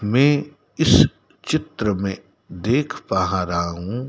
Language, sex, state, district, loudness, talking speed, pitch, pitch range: Hindi, male, Madhya Pradesh, Dhar, -20 LUFS, 115 wpm, 105 Hz, 90-135 Hz